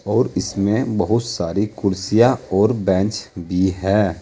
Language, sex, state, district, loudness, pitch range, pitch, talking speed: Hindi, male, Uttar Pradesh, Saharanpur, -19 LUFS, 95-110 Hz, 100 Hz, 130 wpm